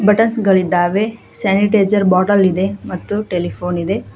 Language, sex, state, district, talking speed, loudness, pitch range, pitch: Kannada, female, Karnataka, Koppal, 115 wpm, -15 LUFS, 185-210 Hz, 195 Hz